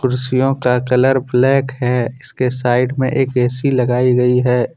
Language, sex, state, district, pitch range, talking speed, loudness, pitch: Hindi, male, Jharkhand, Deoghar, 125-130 Hz, 175 wpm, -15 LUFS, 125 Hz